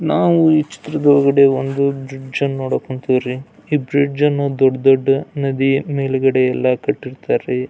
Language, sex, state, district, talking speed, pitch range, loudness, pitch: Kannada, male, Karnataka, Belgaum, 140 wpm, 130-145 Hz, -16 LUFS, 135 Hz